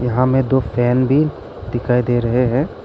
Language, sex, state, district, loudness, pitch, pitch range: Hindi, male, Arunachal Pradesh, Lower Dibang Valley, -17 LUFS, 125 Hz, 120-130 Hz